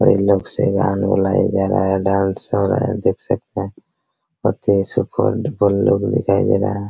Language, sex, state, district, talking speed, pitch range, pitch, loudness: Hindi, male, Bihar, Araria, 150 wpm, 95-100 Hz, 100 Hz, -18 LUFS